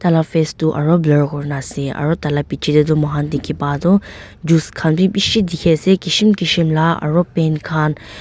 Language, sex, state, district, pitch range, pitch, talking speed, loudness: Nagamese, female, Nagaland, Dimapur, 150-170 Hz, 160 Hz, 195 wpm, -16 LUFS